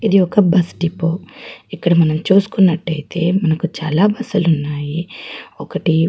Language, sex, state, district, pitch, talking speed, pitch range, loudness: Telugu, female, Andhra Pradesh, Guntur, 170 Hz, 140 wpm, 160-190 Hz, -16 LUFS